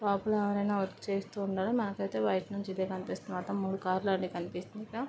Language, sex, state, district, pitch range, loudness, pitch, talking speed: Telugu, female, Andhra Pradesh, Visakhapatnam, 190-205 Hz, -34 LUFS, 195 Hz, 155 wpm